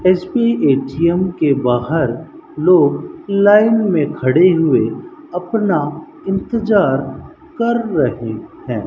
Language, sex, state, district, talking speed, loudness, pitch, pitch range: Hindi, male, Rajasthan, Bikaner, 95 wpm, -15 LUFS, 175 Hz, 135-205 Hz